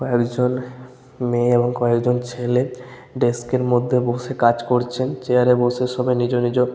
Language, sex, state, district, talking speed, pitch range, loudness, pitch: Bengali, male, West Bengal, Malda, 150 wpm, 120-125 Hz, -20 LUFS, 125 Hz